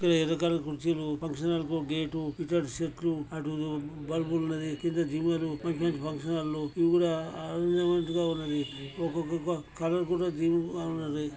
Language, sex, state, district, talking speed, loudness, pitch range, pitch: Telugu, male, Telangana, Karimnagar, 100 wpm, -31 LUFS, 155-170 Hz, 165 Hz